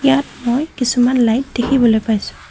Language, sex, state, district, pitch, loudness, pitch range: Assamese, female, Assam, Kamrup Metropolitan, 250 Hz, -16 LUFS, 235-265 Hz